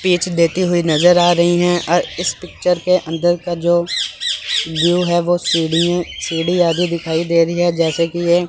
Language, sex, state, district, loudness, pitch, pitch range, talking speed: Hindi, male, Chandigarh, Chandigarh, -16 LUFS, 175 Hz, 165-175 Hz, 170 wpm